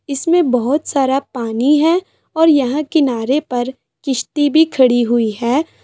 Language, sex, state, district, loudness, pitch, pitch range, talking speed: Hindi, female, Jharkhand, Sahebganj, -15 LUFS, 275 Hz, 250-305 Hz, 145 wpm